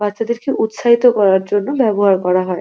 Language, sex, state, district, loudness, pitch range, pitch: Bengali, female, West Bengal, North 24 Parganas, -15 LUFS, 195-235 Hz, 210 Hz